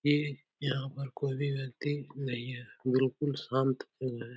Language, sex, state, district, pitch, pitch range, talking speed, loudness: Hindi, male, Uttar Pradesh, Etah, 135 Hz, 130-145 Hz, 180 wpm, -34 LUFS